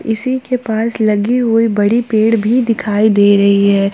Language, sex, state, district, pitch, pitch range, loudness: Hindi, female, Jharkhand, Palamu, 220 Hz, 205-235 Hz, -13 LUFS